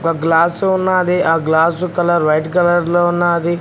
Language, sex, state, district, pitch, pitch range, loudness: Telugu, male, Telangana, Mahabubabad, 175 Hz, 165-175 Hz, -14 LUFS